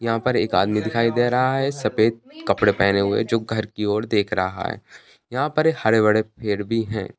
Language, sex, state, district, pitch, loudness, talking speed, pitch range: Hindi, male, Bihar, Bhagalpur, 110 Hz, -21 LUFS, 215 wpm, 105-120 Hz